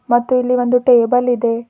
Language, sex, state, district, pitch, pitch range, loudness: Kannada, female, Karnataka, Bidar, 245 Hz, 240-250 Hz, -14 LUFS